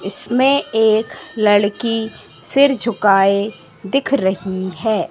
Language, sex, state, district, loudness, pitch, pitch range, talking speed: Hindi, female, Madhya Pradesh, Katni, -16 LUFS, 215 Hz, 195-240 Hz, 95 wpm